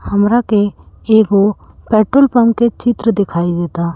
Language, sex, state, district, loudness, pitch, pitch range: Bhojpuri, female, Uttar Pradesh, Gorakhpur, -13 LUFS, 210 Hz, 200-235 Hz